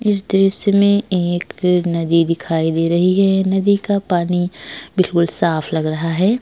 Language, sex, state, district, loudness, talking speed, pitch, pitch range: Hindi, male, Uttar Pradesh, Jyotiba Phule Nagar, -17 LUFS, 160 wpm, 180 Hz, 165-195 Hz